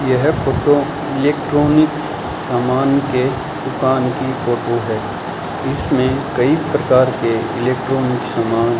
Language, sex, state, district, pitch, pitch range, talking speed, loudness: Hindi, male, Rajasthan, Bikaner, 130 Hz, 125-145 Hz, 110 wpm, -17 LUFS